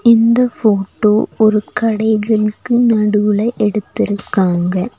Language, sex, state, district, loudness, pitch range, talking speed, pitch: Tamil, female, Tamil Nadu, Nilgiris, -14 LUFS, 210-230 Hz, 70 wpm, 215 Hz